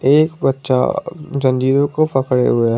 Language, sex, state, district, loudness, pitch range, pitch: Hindi, male, Jharkhand, Garhwa, -16 LUFS, 130-155 Hz, 135 Hz